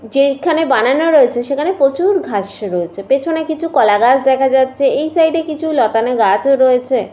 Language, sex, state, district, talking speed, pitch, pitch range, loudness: Bengali, female, West Bengal, Paschim Medinipur, 175 wpm, 270 Hz, 245-315 Hz, -14 LUFS